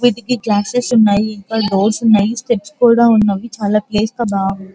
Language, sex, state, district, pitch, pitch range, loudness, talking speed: Telugu, female, Andhra Pradesh, Guntur, 215 Hz, 205-235 Hz, -14 LUFS, 190 wpm